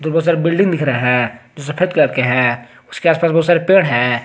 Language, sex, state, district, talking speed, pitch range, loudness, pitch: Hindi, male, Jharkhand, Garhwa, 255 wpm, 125-170 Hz, -15 LUFS, 150 Hz